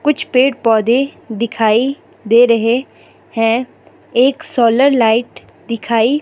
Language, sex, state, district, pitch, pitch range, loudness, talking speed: Hindi, female, Himachal Pradesh, Shimla, 235 Hz, 225-265 Hz, -14 LUFS, 95 wpm